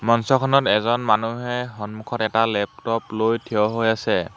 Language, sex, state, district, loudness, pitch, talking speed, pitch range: Assamese, male, Assam, Hailakandi, -21 LUFS, 115 Hz, 135 wpm, 110-120 Hz